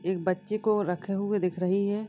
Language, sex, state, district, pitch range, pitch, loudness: Hindi, female, Uttar Pradesh, Deoria, 185-210 Hz, 195 Hz, -28 LUFS